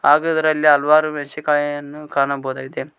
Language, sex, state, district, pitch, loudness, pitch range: Kannada, male, Karnataka, Koppal, 145 Hz, -18 LUFS, 145-155 Hz